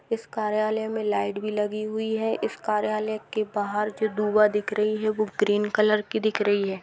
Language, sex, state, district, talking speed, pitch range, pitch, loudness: Hindi, female, Bihar, East Champaran, 210 wpm, 210-215 Hz, 215 Hz, -25 LUFS